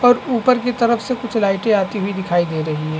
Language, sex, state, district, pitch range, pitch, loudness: Hindi, male, Chhattisgarh, Bastar, 175-245 Hz, 210 Hz, -18 LUFS